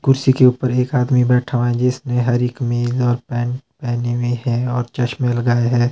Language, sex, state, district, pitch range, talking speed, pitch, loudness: Hindi, male, Himachal Pradesh, Shimla, 120-125 Hz, 200 wpm, 125 Hz, -18 LUFS